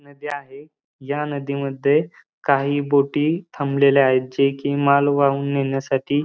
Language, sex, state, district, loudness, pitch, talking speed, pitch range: Marathi, male, Maharashtra, Pune, -20 LUFS, 140 Hz, 135 wpm, 140-145 Hz